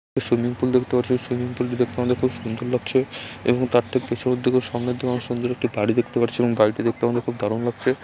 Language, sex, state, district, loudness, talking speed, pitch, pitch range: Bengali, male, West Bengal, Jalpaiguri, -23 LUFS, 225 wpm, 125 Hz, 120-125 Hz